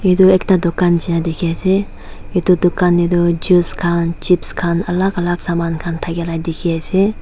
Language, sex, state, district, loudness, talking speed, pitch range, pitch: Nagamese, female, Nagaland, Dimapur, -16 LUFS, 140 wpm, 170-185 Hz, 175 Hz